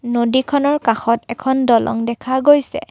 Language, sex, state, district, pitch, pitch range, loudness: Assamese, female, Assam, Kamrup Metropolitan, 245 Hz, 235-265 Hz, -16 LUFS